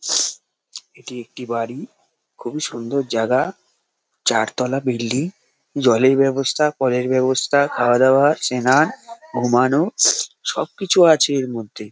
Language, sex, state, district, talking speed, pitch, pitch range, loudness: Bengali, male, West Bengal, North 24 Parganas, 100 wpm, 130 Hz, 125-145 Hz, -18 LUFS